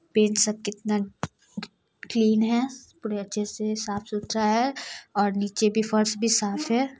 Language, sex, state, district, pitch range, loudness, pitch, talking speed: Hindi, female, Bihar, Muzaffarpur, 205-220 Hz, -25 LUFS, 215 Hz, 145 wpm